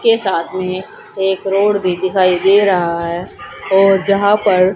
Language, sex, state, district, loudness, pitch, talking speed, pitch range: Hindi, female, Haryana, Charkhi Dadri, -14 LUFS, 190 Hz, 165 wpm, 185-200 Hz